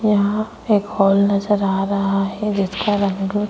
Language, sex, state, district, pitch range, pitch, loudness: Hindi, female, Goa, North and South Goa, 195-210 Hz, 200 Hz, -19 LUFS